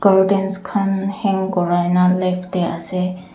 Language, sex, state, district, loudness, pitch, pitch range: Nagamese, female, Nagaland, Dimapur, -18 LUFS, 185 Hz, 180-195 Hz